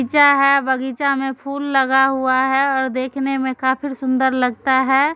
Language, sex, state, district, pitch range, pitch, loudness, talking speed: Maithili, female, Bihar, Supaul, 260-275 Hz, 265 Hz, -17 LUFS, 175 wpm